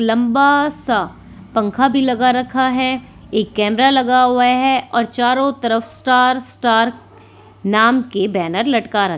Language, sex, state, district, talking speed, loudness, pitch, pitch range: Hindi, female, Delhi, New Delhi, 145 wpm, -16 LUFS, 245 Hz, 220-260 Hz